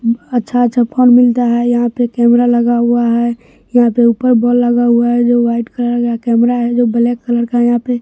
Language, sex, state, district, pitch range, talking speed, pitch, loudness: Hindi, male, Bihar, West Champaran, 235-245 Hz, 215 wpm, 240 Hz, -12 LUFS